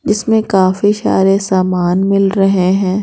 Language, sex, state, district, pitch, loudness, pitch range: Hindi, female, Bihar, Patna, 195 Hz, -13 LUFS, 185-205 Hz